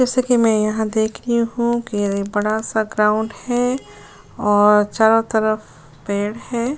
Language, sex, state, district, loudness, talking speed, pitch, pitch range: Hindi, female, Uttar Pradesh, Jyotiba Phule Nagar, -18 LUFS, 150 wpm, 220 Hz, 210-235 Hz